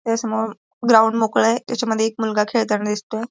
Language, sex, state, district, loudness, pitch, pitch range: Marathi, female, Maharashtra, Pune, -19 LUFS, 225 Hz, 220-230 Hz